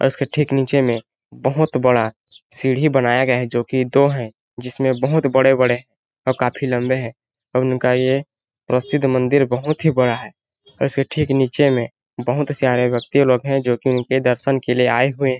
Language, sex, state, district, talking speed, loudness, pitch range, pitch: Hindi, male, Chhattisgarh, Balrampur, 175 wpm, -18 LUFS, 125-135 Hz, 130 Hz